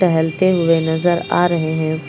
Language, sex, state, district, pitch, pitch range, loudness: Hindi, female, Uttar Pradesh, Lucknow, 165 Hz, 160-175 Hz, -16 LUFS